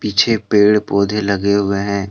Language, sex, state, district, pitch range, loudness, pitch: Hindi, male, Jharkhand, Deoghar, 100-105 Hz, -15 LUFS, 100 Hz